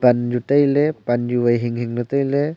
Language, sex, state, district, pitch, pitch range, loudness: Wancho, male, Arunachal Pradesh, Longding, 120 Hz, 120-140 Hz, -19 LUFS